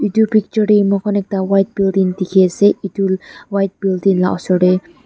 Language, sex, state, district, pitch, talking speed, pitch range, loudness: Nagamese, female, Nagaland, Dimapur, 195 Hz, 180 wpm, 190-205 Hz, -15 LUFS